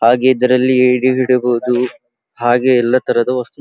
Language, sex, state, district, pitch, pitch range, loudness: Kannada, female, Karnataka, Belgaum, 125 Hz, 120-130 Hz, -14 LUFS